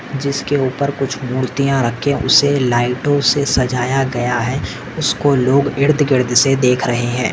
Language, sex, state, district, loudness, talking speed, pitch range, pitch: Hindi, male, Maharashtra, Solapur, -16 LUFS, 155 wpm, 125-140 Hz, 135 Hz